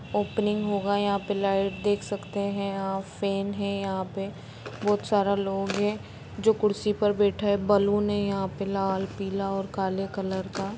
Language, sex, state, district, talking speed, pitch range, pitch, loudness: Hindi, female, Jharkhand, Jamtara, 170 wpm, 195-205 Hz, 200 Hz, -27 LUFS